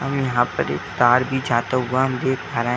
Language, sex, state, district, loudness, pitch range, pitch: Hindi, male, Uttar Pradesh, Etah, -20 LUFS, 120-130 Hz, 130 Hz